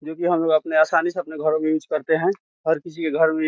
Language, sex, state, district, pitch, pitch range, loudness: Hindi, male, Bihar, Saran, 160 Hz, 155-170 Hz, -21 LUFS